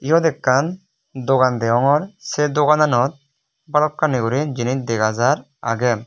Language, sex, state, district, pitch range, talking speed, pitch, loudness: Chakma, male, Tripura, West Tripura, 125-150 Hz, 120 wpm, 140 Hz, -19 LUFS